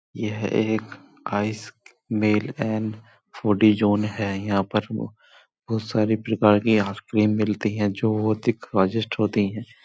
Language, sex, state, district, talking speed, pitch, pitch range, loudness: Hindi, male, Uttar Pradesh, Muzaffarnagar, 140 wpm, 110 Hz, 105-110 Hz, -23 LUFS